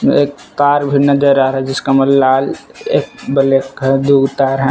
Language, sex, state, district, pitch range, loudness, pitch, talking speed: Hindi, male, Jharkhand, Palamu, 135-140 Hz, -13 LUFS, 135 Hz, 205 wpm